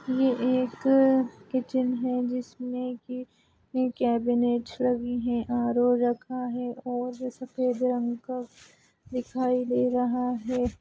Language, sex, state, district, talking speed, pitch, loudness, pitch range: Hindi, female, West Bengal, Kolkata, 115 wpm, 250 Hz, -27 LUFS, 245-255 Hz